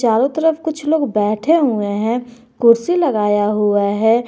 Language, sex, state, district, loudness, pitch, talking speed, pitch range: Hindi, female, Jharkhand, Garhwa, -16 LUFS, 235 Hz, 155 wpm, 210-295 Hz